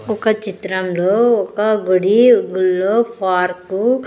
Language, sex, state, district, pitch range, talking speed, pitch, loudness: Telugu, female, Andhra Pradesh, Sri Satya Sai, 185-220 Hz, 105 wpm, 200 Hz, -16 LUFS